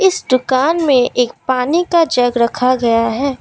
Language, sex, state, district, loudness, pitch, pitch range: Hindi, female, Assam, Kamrup Metropolitan, -14 LUFS, 255 Hz, 245-320 Hz